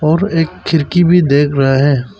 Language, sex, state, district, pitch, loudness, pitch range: Hindi, male, Arunachal Pradesh, Papum Pare, 155 Hz, -12 LUFS, 140-170 Hz